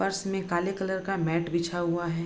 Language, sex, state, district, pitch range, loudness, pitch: Hindi, female, Bihar, Bhagalpur, 170-190 Hz, -29 LUFS, 175 Hz